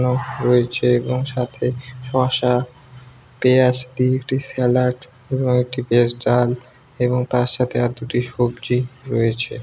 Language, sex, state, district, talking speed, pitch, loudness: Bengali, male, West Bengal, Malda, 125 wpm, 125 Hz, -19 LUFS